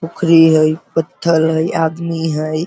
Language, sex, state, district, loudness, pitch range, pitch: Hindi, male, Bihar, Sitamarhi, -14 LUFS, 160-165 Hz, 160 Hz